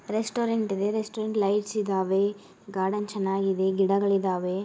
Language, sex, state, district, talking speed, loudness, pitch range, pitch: Kannada, female, Karnataka, Gulbarga, 105 wpm, -27 LUFS, 195-215 Hz, 200 Hz